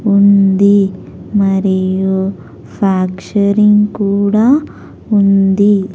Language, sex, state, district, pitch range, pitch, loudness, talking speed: Telugu, female, Andhra Pradesh, Sri Satya Sai, 190-205 Hz, 200 Hz, -12 LUFS, 50 wpm